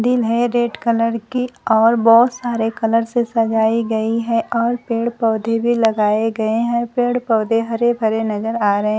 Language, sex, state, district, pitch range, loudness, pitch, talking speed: Hindi, female, Bihar, Kaimur, 225-235 Hz, -17 LUFS, 230 Hz, 180 wpm